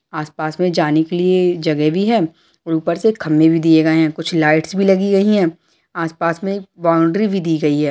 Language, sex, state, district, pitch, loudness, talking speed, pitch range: Hindi, female, Bihar, Jamui, 165 Hz, -16 LUFS, 205 wpm, 160-185 Hz